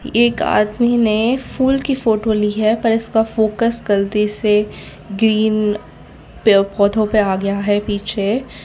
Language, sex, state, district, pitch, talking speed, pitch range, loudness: Hindi, female, Gujarat, Valsad, 215 Hz, 145 wpm, 210-230 Hz, -16 LUFS